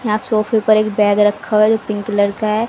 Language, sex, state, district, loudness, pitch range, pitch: Hindi, female, Haryana, Rohtak, -15 LUFS, 210-215 Hz, 215 Hz